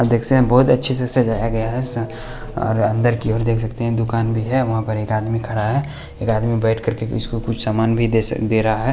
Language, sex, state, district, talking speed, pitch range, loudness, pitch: Hindi, male, Bihar, West Champaran, 270 wpm, 110-120 Hz, -19 LUFS, 115 Hz